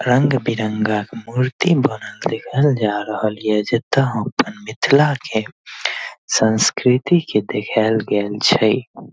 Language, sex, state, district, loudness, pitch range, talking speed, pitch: Maithili, male, Bihar, Darbhanga, -18 LUFS, 110-130 Hz, 120 wpm, 110 Hz